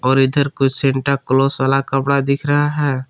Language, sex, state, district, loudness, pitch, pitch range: Hindi, male, Jharkhand, Palamu, -16 LUFS, 135 Hz, 135-140 Hz